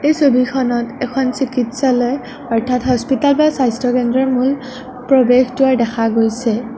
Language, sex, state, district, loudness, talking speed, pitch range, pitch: Assamese, female, Assam, Sonitpur, -15 LUFS, 115 wpm, 245-265 Hz, 250 Hz